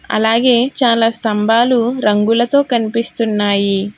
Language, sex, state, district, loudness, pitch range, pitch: Telugu, female, Telangana, Hyderabad, -14 LUFS, 215-240 Hz, 230 Hz